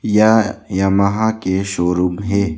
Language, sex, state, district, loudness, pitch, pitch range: Hindi, male, Arunachal Pradesh, Lower Dibang Valley, -16 LUFS, 100 Hz, 95-105 Hz